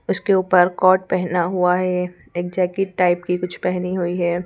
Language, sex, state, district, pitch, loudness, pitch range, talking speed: Hindi, female, Madhya Pradesh, Bhopal, 180 Hz, -19 LUFS, 180-185 Hz, 190 wpm